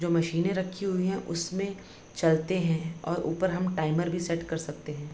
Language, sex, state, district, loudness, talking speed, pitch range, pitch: Hindi, female, Bihar, Bhagalpur, -29 LUFS, 200 wpm, 160-185 Hz, 170 Hz